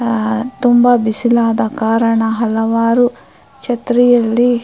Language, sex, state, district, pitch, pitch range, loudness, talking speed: Kannada, female, Karnataka, Mysore, 235 Hz, 225-245 Hz, -13 LUFS, 90 wpm